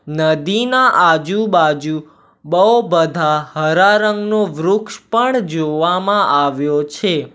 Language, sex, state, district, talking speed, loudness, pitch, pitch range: Gujarati, male, Gujarat, Valsad, 90 wpm, -15 LUFS, 165 Hz, 155-210 Hz